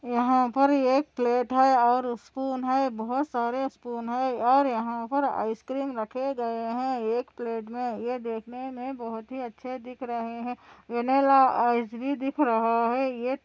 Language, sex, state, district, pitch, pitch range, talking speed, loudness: Hindi, female, Andhra Pradesh, Anantapur, 250 Hz, 235-265 Hz, 175 wpm, -26 LUFS